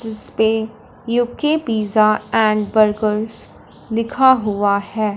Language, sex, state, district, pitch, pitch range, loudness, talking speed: Hindi, female, Punjab, Fazilka, 220 Hz, 215-230 Hz, -17 LUFS, 105 wpm